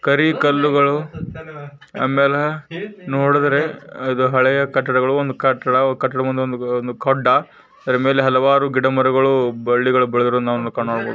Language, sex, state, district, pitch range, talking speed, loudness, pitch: Kannada, male, Karnataka, Bijapur, 130-145 Hz, 100 wpm, -17 LUFS, 135 Hz